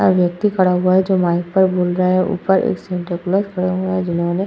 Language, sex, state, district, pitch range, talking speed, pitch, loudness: Hindi, female, Uttar Pradesh, Hamirpur, 180-190 Hz, 270 wpm, 185 Hz, -17 LUFS